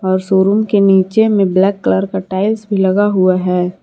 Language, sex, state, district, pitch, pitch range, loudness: Hindi, female, Jharkhand, Garhwa, 190 Hz, 185-205 Hz, -13 LUFS